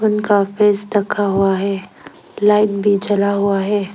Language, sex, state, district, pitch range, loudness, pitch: Hindi, female, Arunachal Pradesh, Lower Dibang Valley, 200-210 Hz, -16 LUFS, 205 Hz